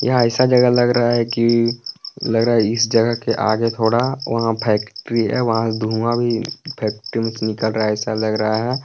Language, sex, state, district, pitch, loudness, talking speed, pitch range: Hindi, male, Jharkhand, Palamu, 115 Hz, -18 LUFS, 210 wpm, 110-120 Hz